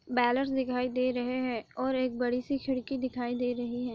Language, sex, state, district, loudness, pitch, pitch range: Hindi, female, Maharashtra, Chandrapur, -31 LUFS, 250 Hz, 245-260 Hz